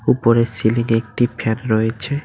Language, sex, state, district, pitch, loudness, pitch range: Bengali, male, West Bengal, Cooch Behar, 115 Hz, -18 LUFS, 110-120 Hz